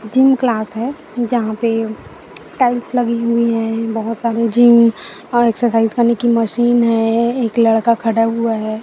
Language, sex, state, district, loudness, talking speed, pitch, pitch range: Hindi, female, Chhattisgarh, Raipur, -15 LUFS, 155 wpm, 230 Hz, 225-240 Hz